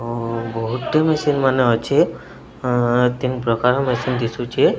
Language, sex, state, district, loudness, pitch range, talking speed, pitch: Odia, male, Odisha, Sambalpur, -19 LUFS, 115-130 Hz, 100 wpm, 125 Hz